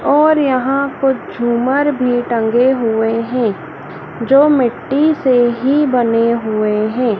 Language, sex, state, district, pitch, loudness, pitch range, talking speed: Hindi, female, Madhya Pradesh, Dhar, 245 Hz, -14 LUFS, 230-270 Hz, 125 wpm